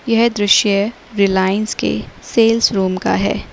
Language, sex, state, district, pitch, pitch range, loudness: Hindi, female, Uttar Pradesh, Lalitpur, 210 Hz, 200-230 Hz, -16 LUFS